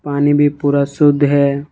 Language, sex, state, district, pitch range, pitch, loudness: Hindi, male, Jharkhand, Ranchi, 140-145 Hz, 145 Hz, -14 LUFS